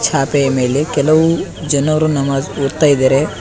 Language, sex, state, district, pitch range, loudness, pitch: Kannada, male, Karnataka, Bidar, 135-155 Hz, -14 LUFS, 140 Hz